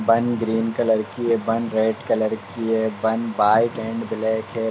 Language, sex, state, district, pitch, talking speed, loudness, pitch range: Hindi, male, Uttar Pradesh, Ghazipur, 110 Hz, 190 wpm, -22 LUFS, 110-115 Hz